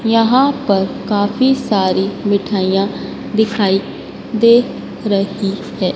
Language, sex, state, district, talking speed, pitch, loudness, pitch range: Hindi, female, Madhya Pradesh, Dhar, 90 wpm, 205 Hz, -15 LUFS, 195-230 Hz